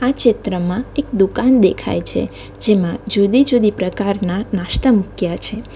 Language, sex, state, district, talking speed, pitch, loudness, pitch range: Gujarati, female, Gujarat, Valsad, 135 wpm, 210 Hz, -17 LUFS, 195-245 Hz